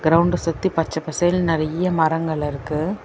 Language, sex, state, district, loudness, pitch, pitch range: Tamil, female, Tamil Nadu, Chennai, -21 LUFS, 165 Hz, 155-175 Hz